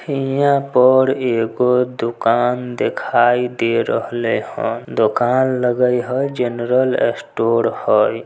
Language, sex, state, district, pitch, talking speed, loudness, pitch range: Maithili, male, Bihar, Samastipur, 125 Hz, 100 wpm, -17 LUFS, 120-130 Hz